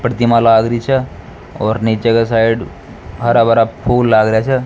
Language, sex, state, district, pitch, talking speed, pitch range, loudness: Rajasthani, male, Rajasthan, Nagaur, 115 Hz, 165 wpm, 110-120 Hz, -13 LUFS